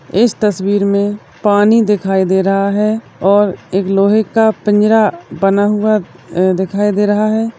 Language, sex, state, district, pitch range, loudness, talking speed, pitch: Hindi, female, Uttar Pradesh, Ghazipur, 195-215 Hz, -13 LUFS, 160 wpm, 205 Hz